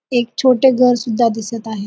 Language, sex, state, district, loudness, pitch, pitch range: Marathi, female, Maharashtra, Sindhudurg, -15 LUFS, 240 Hz, 225-250 Hz